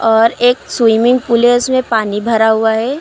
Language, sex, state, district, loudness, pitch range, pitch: Hindi, female, Uttar Pradesh, Lucknow, -12 LUFS, 220-245 Hz, 230 Hz